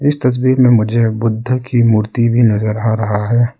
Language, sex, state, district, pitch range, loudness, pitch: Hindi, male, Arunachal Pradesh, Lower Dibang Valley, 110-125 Hz, -14 LUFS, 115 Hz